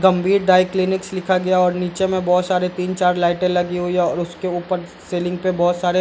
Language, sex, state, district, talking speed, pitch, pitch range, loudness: Hindi, male, Bihar, Darbhanga, 230 wpm, 180 Hz, 180-185 Hz, -19 LUFS